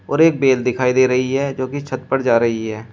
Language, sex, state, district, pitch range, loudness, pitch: Hindi, male, Uttar Pradesh, Shamli, 125-135 Hz, -17 LUFS, 130 Hz